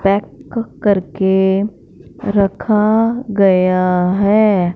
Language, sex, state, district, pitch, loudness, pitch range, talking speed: Hindi, female, Punjab, Fazilka, 200 Hz, -15 LUFS, 190-215 Hz, 65 wpm